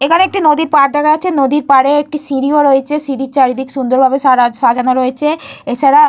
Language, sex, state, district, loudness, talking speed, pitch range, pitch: Bengali, female, West Bengal, Purulia, -12 LUFS, 165 wpm, 265-300 Hz, 275 Hz